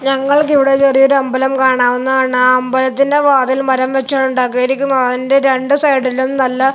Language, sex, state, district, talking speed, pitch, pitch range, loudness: Malayalam, male, Kerala, Kasaragod, 135 wpm, 265 Hz, 260-275 Hz, -13 LUFS